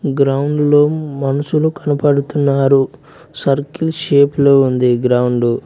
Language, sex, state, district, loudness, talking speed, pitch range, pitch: Telugu, male, Telangana, Mahabubabad, -14 LUFS, 95 wpm, 135-145 Hz, 140 Hz